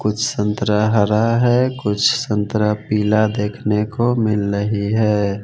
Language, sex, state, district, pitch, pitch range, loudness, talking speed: Hindi, male, Bihar, West Champaran, 105 Hz, 105-110 Hz, -18 LUFS, 130 wpm